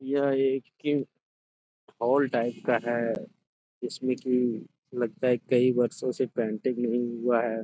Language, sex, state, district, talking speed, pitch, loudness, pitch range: Hindi, male, Bihar, Jamui, 150 wpm, 120 Hz, -28 LUFS, 115-130 Hz